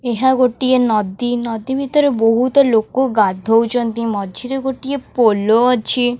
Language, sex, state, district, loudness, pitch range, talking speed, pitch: Odia, female, Odisha, Khordha, -16 LUFS, 225-260 Hz, 115 wpm, 245 Hz